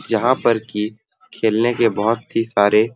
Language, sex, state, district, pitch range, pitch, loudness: Sadri, male, Chhattisgarh, Jashpur, 105-115 Hz, 115 Hz, -18 LUFS